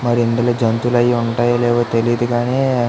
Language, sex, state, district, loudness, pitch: Telugu, male, Andhra Pradesh, Visakhapatnam, -16 LUFS, 120 Hz